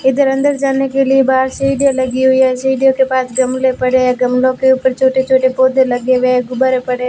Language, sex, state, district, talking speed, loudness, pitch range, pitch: Hindi, female, Rajasthan, Bikaner, 230 wpm, -13 LUFS, 255-265 Hz, 260 Hz